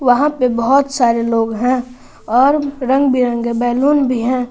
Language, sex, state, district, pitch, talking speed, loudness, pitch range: Hindi, female, Jharkhand, Garhwa, 250 Hz, 160 wpm, -15 LUFS, 240-270 Hz